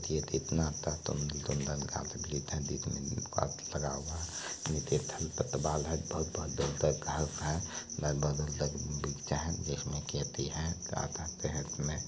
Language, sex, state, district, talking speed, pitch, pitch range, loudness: Maithili, male, Bihar, Supaul, 130 wpm, 75 Hz, 75-80 Hz, -36 LUFS